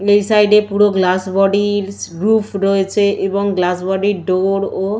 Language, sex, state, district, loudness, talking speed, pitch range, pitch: Bengali, female, West Bengal, Malda, -15 LUFS, 180 wpm, 190-205 Hz, 200 Hz